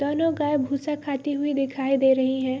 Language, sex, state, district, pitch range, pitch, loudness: Hindi, female, Bihar, Sitamarhi, 265-295 Hz, 280 Hz, -24 LUFS